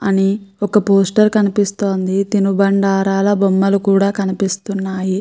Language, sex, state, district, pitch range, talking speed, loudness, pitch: Telugu, female, Andhra Pradesh, Krishna, 195-200 Hz, 90 wpm, -15 LUFS, 195 Hz